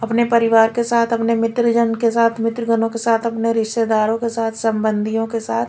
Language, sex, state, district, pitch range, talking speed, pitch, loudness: Hindi, female, Delhi, New Delhi, 225-230 Hz, 190 wpm, 230 Hz, -18 LUFS